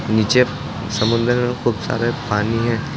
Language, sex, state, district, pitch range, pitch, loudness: Hindi, male, Uttar Pradesh, Lucknow, 110-125 Hz, 115 Hz, -19 LUFS